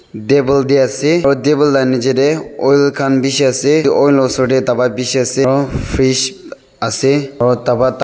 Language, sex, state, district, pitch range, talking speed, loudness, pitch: Nagamese, male, Nagaland, Dimapur, 130-140 Hz, 170 wpm, -13 LUFS, 135 Hz